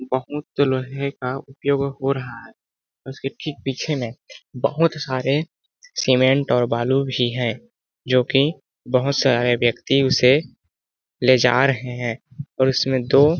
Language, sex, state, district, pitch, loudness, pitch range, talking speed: Hindi, male, Chhattisgarh, Balrampur, 130 Hz, -20 LUFS, 125-140 Hz, 145 wpm